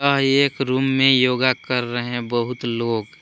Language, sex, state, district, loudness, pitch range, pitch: Hindi, male, Jharkhand, Palamu, -19 LUFS, 120-135 Hz, 125 Hz